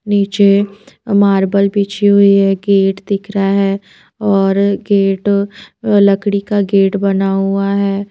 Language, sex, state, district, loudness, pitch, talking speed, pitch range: Hindi, female, Himachal Pradesh, Shimla, -13 LUFS, 200 Hz, 125 wpm, 195-200 Hz